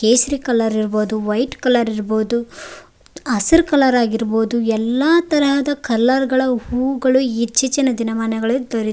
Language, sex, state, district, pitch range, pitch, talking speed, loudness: Kannada, female, Karnataka, Raichur, 225-265 Hz, 245 Hz, 115 wpm, -17 LUFS